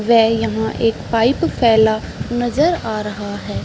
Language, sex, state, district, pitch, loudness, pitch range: Hindi, female, Bihar, Saran, 225 Hz, -17 LUFS, 220-240 Hz